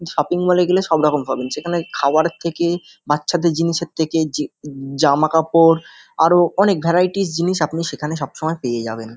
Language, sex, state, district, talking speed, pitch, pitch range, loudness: Bengali, male, West Bengal, North 24 Parganas, 145 wpm, 165 Hz, 150-170 Hz, -18 LUFS